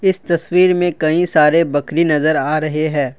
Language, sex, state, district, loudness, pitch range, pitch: Hindi, male, Assam, Kamrup Metropolitan, -15 LUFS, 150-175 Hz, 155 Hz